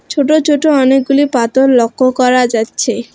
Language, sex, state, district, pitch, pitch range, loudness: Bengali, female, West Bengal, Alipurduar, 260 Hz, 240-285 Hz, -11 LUFS